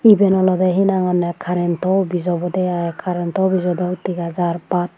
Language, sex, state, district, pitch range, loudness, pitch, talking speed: Chakma, female, Tripura, Unakoti, 175-185 Hz, -18 LUFS, 180 Hz, 190 wpm